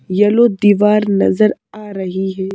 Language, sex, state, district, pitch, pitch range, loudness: Hindi, female, Madhya Pradesh, Bhopal, 205 Hz, 190-210 Hz, -14 LUFS